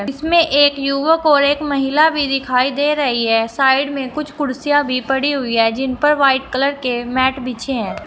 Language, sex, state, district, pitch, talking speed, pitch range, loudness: Hindi, female, Uttar Pradesh, Shamli, 275 Hz, 200 wpm, 255-290 Hz, -16 LUFS